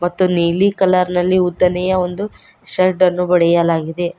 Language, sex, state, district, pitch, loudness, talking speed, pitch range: Kannada, female, Karnataka, Koppal, 180 Hz, -15 LUFS, 130 wpm, 175-185 Hz